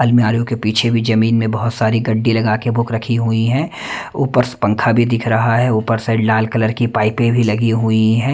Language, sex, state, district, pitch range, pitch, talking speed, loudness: Hindi, male, Delhi, New Delhi, 110-120 Hz, 115 Hz, 225 wpm, -16 LUFS